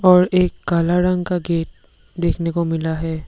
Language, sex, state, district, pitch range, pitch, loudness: Hindi, male, Assam, Sonitpur, 165-180 Hz, 170 Hz, -19 LUFS